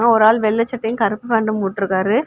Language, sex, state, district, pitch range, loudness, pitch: Tamil, female, Tamil Nadu, Kanyakumari, 210-230 Hz, -17 LUFS, 220 Hz